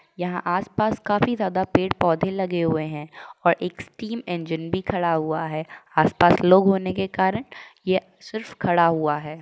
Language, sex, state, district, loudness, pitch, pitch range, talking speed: Hindi, female, Uttar Pradesh, Jalaun, -22 LUFS, 180 Hz, 160-195 Hz, 180 wpm